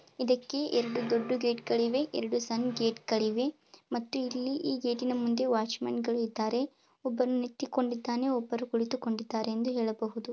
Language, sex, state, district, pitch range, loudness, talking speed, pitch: Kannada, female, Karnataka, Belgaum, 230-255 Hz, -32 LUFS, 145 wpm, 240 Hz